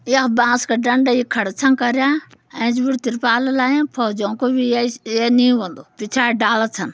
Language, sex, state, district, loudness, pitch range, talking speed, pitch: Garhwali, female, Uttarakhand, Uttarkashi, -17 LUFS, 230-260 Hz, 200 wpm, 245 Hz